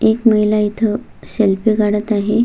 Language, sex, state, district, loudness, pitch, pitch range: Marathi, female, Maharashtra, Solapur, -16 LUFS, 215 Hz, 210-220 Hz